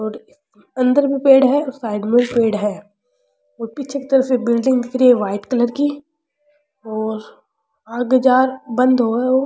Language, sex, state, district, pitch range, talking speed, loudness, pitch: Rajasthani, female, Rajasthan, Churu, 220-270 Hz, 175 wpm, -17 LUFS, 250 Hz